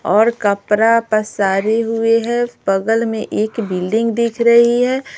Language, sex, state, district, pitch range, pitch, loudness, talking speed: Hindi, female, Bihar, Patna, 210-235 Hz, 225 Hz, -16 LUFS, 140 wpm